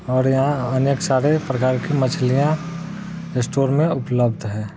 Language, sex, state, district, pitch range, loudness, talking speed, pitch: Hindi, male, Bihar, Muzaffarpur, 125-155 Hz, -20 LUFS, 140 wpm, 135 Hz